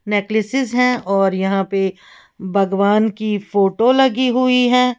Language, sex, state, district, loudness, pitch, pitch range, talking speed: Hindi, female, Uttar Pradesh, Lalitpur, -17 LUFS, 215 Hz, 195-250 Hz, 130 wpm